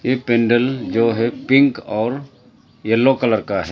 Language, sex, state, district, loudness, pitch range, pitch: Hindi, male, Arunachal Pradesh, Lower Dibang Valley, -17 LUFS, 115-130 Hz, 120 Hz